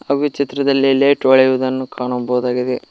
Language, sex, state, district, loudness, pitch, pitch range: Kannada, male, Karnataka, Koppal, -16 LUFS, 130 Hz, 125-140 Hz